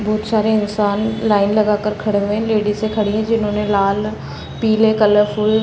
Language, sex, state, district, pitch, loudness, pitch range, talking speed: Hindi, female, Uttar Pradesh, Varanasi, 215 Hz, -17 LUFS, 210-220 Hz, 180 wpm